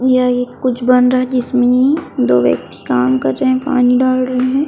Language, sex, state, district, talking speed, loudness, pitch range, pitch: Hindi, female, Chhattisgarh, Kabirdham, 230 wpm, -14 LUFS, 240-255 Hz, 250 Hz